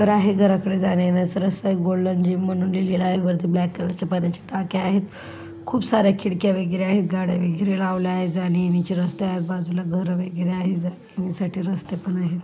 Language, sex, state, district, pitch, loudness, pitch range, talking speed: Marathi, female, Maharashtra, Solapur, 185 Hz, -22 LUFS, 180-190 Hz, 190 wpm